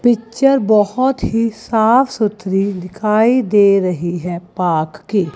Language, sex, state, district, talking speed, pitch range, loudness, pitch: Hindi, female, Chandigarh, Chandigarh, 125 wpm, 185-230 Hz, -15 LUFS, 210 Hz